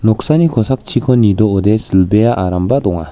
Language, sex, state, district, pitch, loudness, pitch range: Garo, male, Meghalaya, West Garo Hills, 110 Hz, -13 LUFS, 95-125 Hz